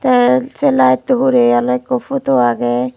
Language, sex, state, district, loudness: Chakma, female, Tripura, Dhalai, -14 LUFS